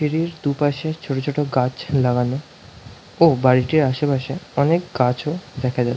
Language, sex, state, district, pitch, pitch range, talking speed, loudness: Bengali, male, West Bengal, North 24 Parganas, 140 Hz, 130-155 Hz, 140 wpm, -20 LUFS